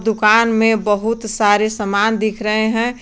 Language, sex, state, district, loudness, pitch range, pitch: Hindi, female, Jharkhand, Garhwa, -16 LUFS, 210-225 Hz, 220 Hz